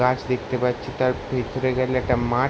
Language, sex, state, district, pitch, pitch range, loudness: Bengali, male, West Bengal, Jalpaiguri, 125 Hz, 125-130 Hz, -24 LUFS